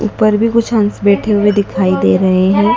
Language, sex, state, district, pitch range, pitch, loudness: Hindi, female, Madhya Pradesh, Dhar, 195-220 Hz, 205 Hz, -12 LUFS